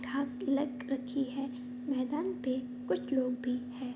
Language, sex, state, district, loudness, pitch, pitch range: Hindi, female, Bihar, Kishanganj, -35 LUFS, 255 Hz, 250-270 Hz